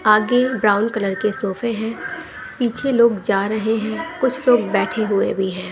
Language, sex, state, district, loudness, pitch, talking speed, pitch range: Hindi, female, Bihar, West Champaran, -19 LUFS, 220 Hz, 180 wpm, 200-245 Hz